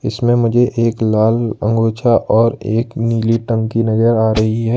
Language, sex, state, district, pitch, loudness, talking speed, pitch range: Hindi, male, Jharkhand, Ranchi, 115 Hz, -15 LUFS, 165 wpm, 110-115 Hz